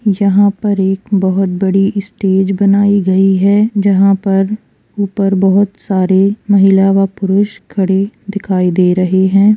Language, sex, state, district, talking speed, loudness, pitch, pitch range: Hindi, female, Bihar, Purnia, 145 wpm, -12 LUFS, 195 Hz, 190-200 Hz